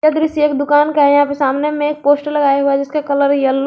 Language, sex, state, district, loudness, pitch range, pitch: Hindi, female, Jharkhand, Garhwa, -14 LUFS, 280-295 Hz, 290 Hz